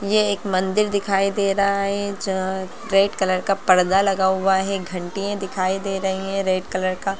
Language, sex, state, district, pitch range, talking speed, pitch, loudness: Hindi, female, Bihar, Gaya, 190-200 Hz, 190 wpm, 195 Hz, -21 LUFS